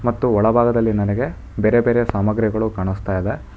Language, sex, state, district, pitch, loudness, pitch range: Kannada, male, Karnataka, Bangalore, 110 Hz, -19 LUFS, 100-120 Hz